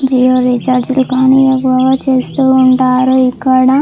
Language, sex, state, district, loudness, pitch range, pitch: Telugu, female, Andhra Pradesh, Chittoor, -10 LUFS, 255-265 Hz, 260 Hz